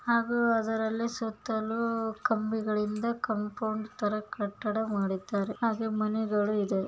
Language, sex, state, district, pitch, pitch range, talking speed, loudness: Kannada, female, Karnataka, Bijapur, 220 Hz, 210-225 Hz, 85 wpm, -30 LUFS